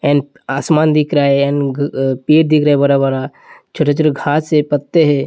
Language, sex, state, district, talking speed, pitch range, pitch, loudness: Hindi, male, Uttar Pradesh, Hamirpur, 225 wpm, 140-155 Hz, 145 Hz, -14 LUFS